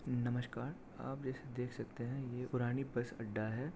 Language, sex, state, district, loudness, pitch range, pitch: Hindi, male, Maharashtra, Sindhudurg, -42 LUFS, 120-130 Hz, 125 Hz